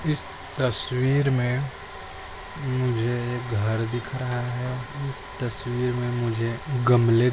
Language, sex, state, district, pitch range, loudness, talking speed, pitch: Hindi, male, Goa, North and South Goa, 120-130 Hz, -26 LUFS, 125 wpm, 125 Hz